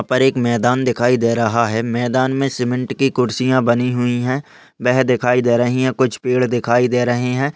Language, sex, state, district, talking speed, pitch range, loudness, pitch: Hindi, male, Maharashtra, Pune, 215 wpm, 120-130 Hz, -17 LUFS, 125 Hz